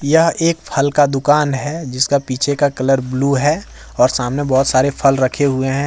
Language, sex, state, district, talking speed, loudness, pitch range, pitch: Hindi, male, Jharkhand, Ranchi, 205 wpm, -16 LUFS, 130-145 Hz, 140 Hz